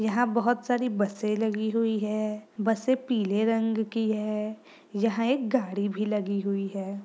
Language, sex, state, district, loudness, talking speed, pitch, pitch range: Hindi, female, Bihar, Gopalganj, -28 LUFS, 160 wpm, 215 Hz, 210-230 Hz